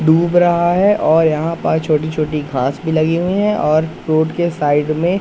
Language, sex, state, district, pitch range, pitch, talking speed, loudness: Hindi, male, Madhya Pradesh, Katni, 155-175 Hz, 160 Hz, 205 wpm, -15 LUFS